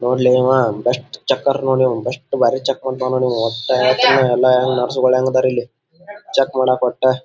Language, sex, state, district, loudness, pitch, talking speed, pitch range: Kannada, male, Karnataka, Gulbarga, -16 LUFS, 130 Hz, 175 wpm, 125-130 Hz